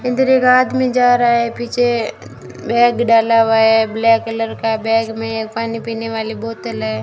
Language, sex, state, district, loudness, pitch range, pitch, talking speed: Hindi, female, Rajasthan, Jaisalmer, -15 LUFS, 225-240 Hz, 225 Hz, 180 wpm